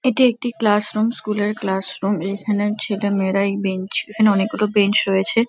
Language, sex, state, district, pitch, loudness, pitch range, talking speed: Bengali, female, West Bengal, Kolkata, 205 Hz, -19 LUFS, 195-215 Hz, 175 wpm